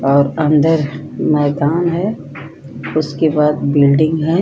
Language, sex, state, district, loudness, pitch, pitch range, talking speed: Hindi, female, Uttar Pradesh, Jyotiba Phule Nagar, -15 LUFS, 150 Hz, 140-160 Hz, 110 wpm